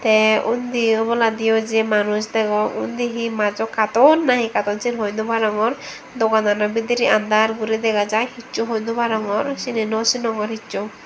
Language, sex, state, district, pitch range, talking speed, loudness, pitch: Chakma, female, Tripura, Dhalai, 215-235 Hz, 170 wpm, -19 LUFS, 225 Hz